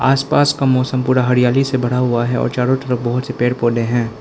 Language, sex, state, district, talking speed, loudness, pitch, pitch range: Hindi, male, Arunachal Pradesh, Lower Dibang Valley, 255 wpm, -16 LUFS, 125 Hz, 120-130 Hz